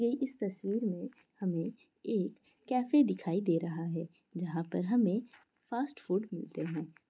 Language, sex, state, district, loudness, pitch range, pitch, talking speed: Hindi, female, Bihar, Madhepura, -34 LUFS, 170-245 Hz, 195 Hz, 145 wpm